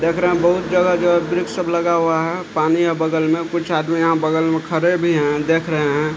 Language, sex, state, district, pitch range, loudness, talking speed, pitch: Hindi, male, Bihar, Supaul, 160-175 Hz, -18 LUFS, 245 wpm, 165 Hz